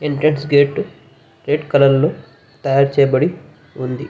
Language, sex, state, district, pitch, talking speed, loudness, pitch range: Telugu, male, Andhra Pradesh, Visakhapatnam, 145 Hz, 100 wpm, -16 LUFS, 135-150 Hz